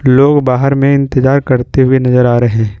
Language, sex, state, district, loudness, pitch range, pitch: Hindi, male, Jharkhand, Ranchi, -10 LUFS, 125-140 Hz, 130 Hz